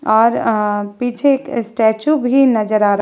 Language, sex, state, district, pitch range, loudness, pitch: Hindi, female, Bihar, Vaishali, 215-265 Hz, -15 LUFS, 230 Hz